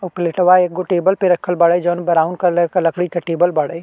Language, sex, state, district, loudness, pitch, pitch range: Bhojpuri, male, Uttar Pradesh, Deoria, -16 LUFS, 175 Hz, 170-180 Hz